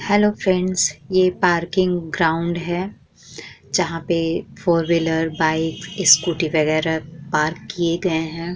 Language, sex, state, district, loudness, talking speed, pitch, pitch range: Hindi, female, Bihar, Vaishali, -20 LUFS, 120 wpm, 170 Hz, 160-180 Hz